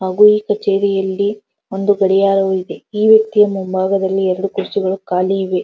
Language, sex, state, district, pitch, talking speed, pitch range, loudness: Kannada, female, Karnataka, Dharwad, 195 Hz, 140 wpm, 190-205 Hz, -15 LUFS